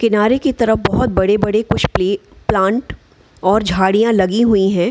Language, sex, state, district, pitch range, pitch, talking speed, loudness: Hindi, female, Bihar, Gaya, 190-225 Hz, 205 Hz, 170 wpm, -15 LUFS